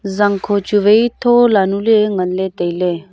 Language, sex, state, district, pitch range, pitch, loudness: Wancho, female, Arunachal Pradesh, Longding, 190-215 Hz, 200 Hz, -14 LUFS